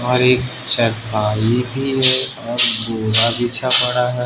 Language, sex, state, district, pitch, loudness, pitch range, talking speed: Hindi, male, Bihar, West Champaran, 125 Hz, -16 LUFS, 115-125 Hz, 125 wpm